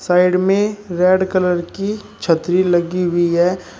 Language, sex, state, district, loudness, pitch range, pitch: Hindi, male, Uttar Pradesh, Shamli, -17 LUFS, 175-190 Hz, 180 Hz